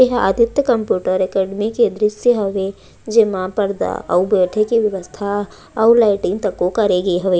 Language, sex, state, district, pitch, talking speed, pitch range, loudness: Chhattisgarhi, female, Chhattisgarh, Raigarh, 205 Hz, 155 wpm, 190-225 Hz, -17 LUFS